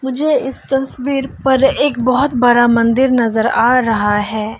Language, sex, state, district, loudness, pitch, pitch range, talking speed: Hindi, female, Arunachal Pradesh, Longding, -14 LUFS, 255 Hz, 230-270 Hz, 155 wpm